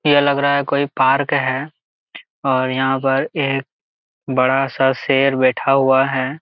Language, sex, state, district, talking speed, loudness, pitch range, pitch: Hindi, male, Jharkhand, Jamtara, 160 wpm, -17 LUFS, 130-140 Hz, 135 Hz